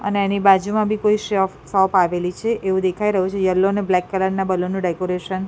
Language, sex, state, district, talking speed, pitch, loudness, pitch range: Gujarati, female, Gujarat, Gandhinagar, 240 wpm, 190 Hz, -19 LUFS, 185-200 Hz